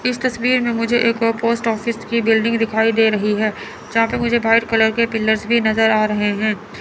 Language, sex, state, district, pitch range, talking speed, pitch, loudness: Hindi, female, Chandigarh, Chandigarh, 220-235 Hz, 230 wpm, 225 Hz, -17 LUFS